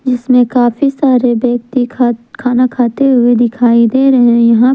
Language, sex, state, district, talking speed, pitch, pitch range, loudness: Hindi, female, Jharkhand, Ranchi, 150 wpm, 245 Hz, 240-255 Hz, -11 LUFS